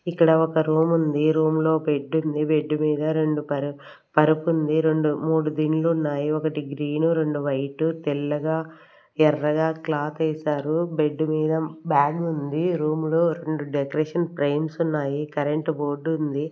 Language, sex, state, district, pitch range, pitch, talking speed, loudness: Telugu, female, Andhra Pradesh, Sri Satya Sai, 150-160 Hz, 155 Hz, 140 wpm, -23 LUFS